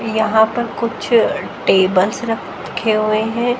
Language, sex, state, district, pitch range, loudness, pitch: Hindi, female, Haryana, Jhajjar, 215-235 Hz, -17 LUFS, 220 Hz